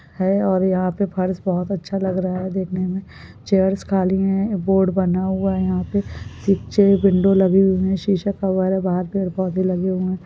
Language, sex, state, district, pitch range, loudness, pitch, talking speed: Hindi, female, Goa, North and South Goa, 185-195 Hz, -20 LUFS, 190 Hz, 180 wpm